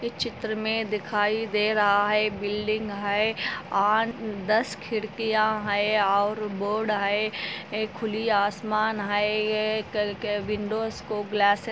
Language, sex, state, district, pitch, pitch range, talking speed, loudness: Hindi, female, Andhra Pradesh, Anantapur, 215 Hz, 205-220 Hz, 140 wpm, -26 LUFS